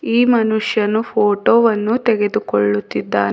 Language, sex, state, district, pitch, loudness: Kannada, female, Karnataka, Bidar, 215 Hz, -16 LUFS